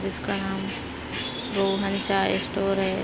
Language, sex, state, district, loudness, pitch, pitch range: Hindi, female, Jharkhand, Sahebganj, -26 LUFS, 195 Hz, 195-200 Hz